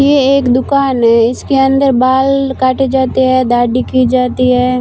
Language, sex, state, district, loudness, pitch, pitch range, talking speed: Hindi, female, Rajasthan, Barmer, -11 LUFS, 260 Hz, 250-270 Hz, 175 wpm